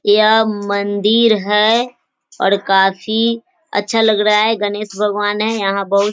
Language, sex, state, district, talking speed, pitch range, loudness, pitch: Hindi, female, Bihar, East Champaran, 145 wpm, 200-220 Hz, -15 LUFS, 210 Hz